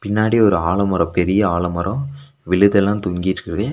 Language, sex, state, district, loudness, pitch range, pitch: Tamil, male, Tamil Nadu, Nilgiris, -17 LUFS, 90-110 Hz, 100 Hz